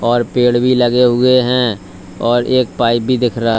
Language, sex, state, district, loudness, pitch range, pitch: Hindi, male, Uttar Pradesh, Lalitpur, -13 LUFS, 115-125 Hz, 120 Hz